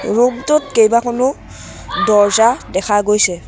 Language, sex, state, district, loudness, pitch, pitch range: Assamese, male, Assam, Sonitpur, -14 LUFS, 220 Hz, 205-250 Hz